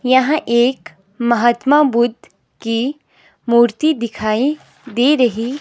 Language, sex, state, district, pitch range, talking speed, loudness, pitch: Hindi, female, Himachal Pradesh, Shimla, 235-270 Hz, 95 wpm, -16 LUFS, 240 Hz